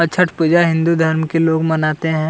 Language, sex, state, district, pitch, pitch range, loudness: Hindi, male, Chhattisgarh, Kabirdham, 160 Hz, 160-170 Hz, -15 LUFS